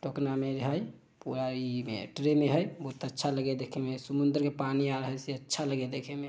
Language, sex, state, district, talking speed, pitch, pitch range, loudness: Maithili, male, Bihar, Samastipur, 220 wpm, 135 Hz, 130-145 Hz, -32 LUFS